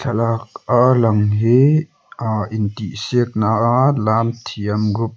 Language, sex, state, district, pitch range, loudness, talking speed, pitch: Mizo, male, Mizoram, Aizawl, 110-120 Hz, -17 LUFS, 125 wpm, 115 Hz